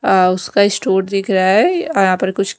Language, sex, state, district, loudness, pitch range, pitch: Hindi, female, Punjab, Kapurthala, -15 LUFS, 190-200 Hz, 195 Hz